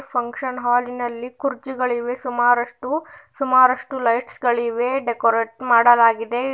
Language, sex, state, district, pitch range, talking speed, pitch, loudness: Kannada, female, Karnataka, Bidar, 240-255 Hz, 90 wpm, 245 Hz, -20 LUFS